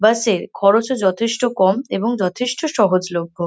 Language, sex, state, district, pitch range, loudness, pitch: Bengali, female, West Bengal, North 24 Parganas, 185-240 Hz, -18 LUFS, 215 Hz